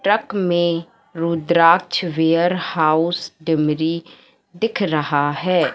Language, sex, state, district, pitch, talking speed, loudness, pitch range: Hindi, female, Madhya Pradesh, Katni, 170 Hz, 95 wpm, -19 LUFS, 160-185 Hz